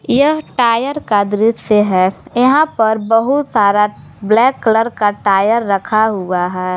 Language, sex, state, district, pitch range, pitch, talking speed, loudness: Hindi, female, Jharkhand, Garhwa, 205-245 Hz, 220 Hz, 140 wpm, -14 LUFS